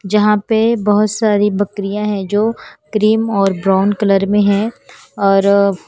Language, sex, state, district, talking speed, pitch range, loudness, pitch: Hindi, female, Haryana, Charkhi Dadri, 145 wpm, 200-215 Hz, -14 LUFS, 205 Hz